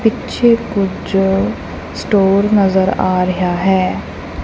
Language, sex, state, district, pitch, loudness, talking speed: Punjabi, female, Punjab, Kapurthala, 190 Hz, -14 LUFS, 95 wpm